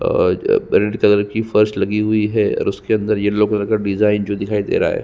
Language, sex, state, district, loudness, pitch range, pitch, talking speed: Hindi, male, Chhattisgarh, Sukma, -17 LUFS, 105-110 Hz, 105 Hz, 235 wpm